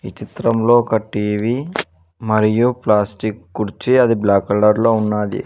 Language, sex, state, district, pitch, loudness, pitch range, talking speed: Telugu, male, Telangana, Mahabubabad, 110 Hz, -17 LUFS, 105-115 Hz, 120 wpm